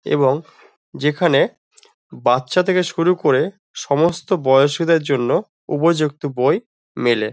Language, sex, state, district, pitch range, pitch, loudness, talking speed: Bengali, male, West Bengal, Dakshin Dinajpur, 135-170 Hz, 155 Hz, -18 LUFS, 100 wpm